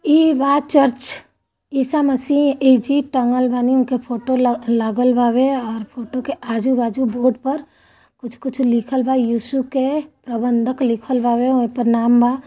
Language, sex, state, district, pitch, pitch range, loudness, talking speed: Hindi, female, Bihar, Gopalganj, 255 Hz, 240-270 Hz, -18 LUFS, 150 wpm